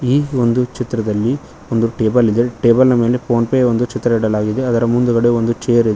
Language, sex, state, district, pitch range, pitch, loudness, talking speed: Kannada, male, Karnataka, Koppal, 115-125 Hz, 120 Hz, -15 LUFS, 190 wpm